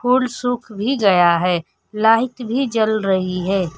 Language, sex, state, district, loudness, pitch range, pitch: Hindi, female, Bihar, Kaimur, -18 LUFS, 185-245 Hz, 220 Hz